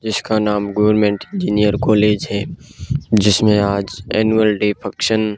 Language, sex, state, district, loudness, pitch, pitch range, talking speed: Hindi, male, Rajasthan, Barmer, -16 LUFS, 105 Hz, 105-110 Hz, 135 wpm